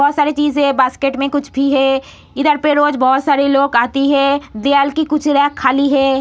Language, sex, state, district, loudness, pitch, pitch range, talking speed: Hindi, female, Bihar, Saharsa, -14 LUFS, 280 Hz, 270-290 Hz, 220 wpm